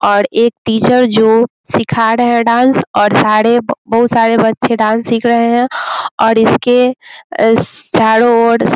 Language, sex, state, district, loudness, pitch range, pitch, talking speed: Hindi, female, Bihar, Muzaffarpur, -11 LUFS, 225-240 Hz, 230 Hz, 150 wpm